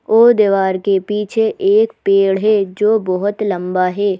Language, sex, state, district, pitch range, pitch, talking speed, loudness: Hindi, female, Madhya Pradesh, Bhopal, 190-220 Hz, 205 Hz, 155 wpm, -15 LUFS